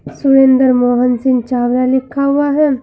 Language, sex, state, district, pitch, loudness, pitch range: Hindi, female, Uttar Pradesh, Saharanpur, 260 Hz, -12 LUFS, 250-275 Hz